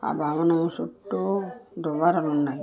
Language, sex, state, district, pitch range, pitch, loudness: Telugu, female, Andhra Pradesh, Visakhapatnam, 145-170 Hz, 160 Hz, -25 LUFS